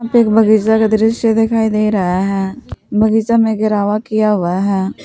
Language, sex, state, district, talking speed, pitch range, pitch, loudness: Hindi, female, Jharkhand, Palamu, 165 wpm, 205-225 Hz, 215 Hz, -14 LUFS